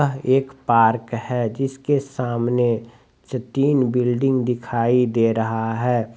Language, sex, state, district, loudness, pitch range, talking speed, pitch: Hindi, male, Bihar, Begusarai, -20 LUFS, 115-135 Hz, 115 wpm, 125 Hz